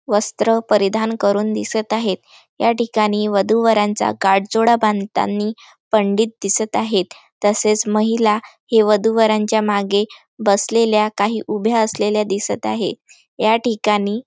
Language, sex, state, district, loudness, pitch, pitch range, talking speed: Marathi, female, Maharashtra, Chandrapur, -17 LUFS, 215 Hz, 205-220 Hz, 120 wpm